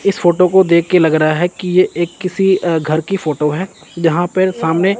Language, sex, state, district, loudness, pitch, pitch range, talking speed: Hindi, male, Chandigarh, Chandigarh, -14 LUFS, 175 Hz, 165-185 Hz, 240 wpm